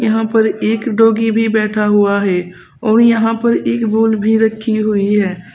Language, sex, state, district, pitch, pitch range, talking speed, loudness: Hindi, female, Uttar Pradesh, Saharanpur, 220 Hz, 210-225 Hz, 185 wpm, -14 LUFS